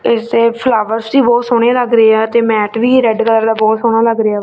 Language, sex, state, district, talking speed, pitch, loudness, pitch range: Punjabi, female, Punjab, Kapurthala, 255 wpm, 230 Hz, -12 LUFS, 220-235 Hz